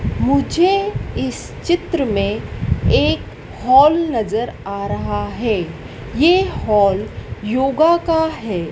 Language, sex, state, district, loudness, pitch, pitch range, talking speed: Hindi, female, Madhya Pradesh, Dhar, -17 LUFS, 250 Hz, 200-325 Hz, 105 wpm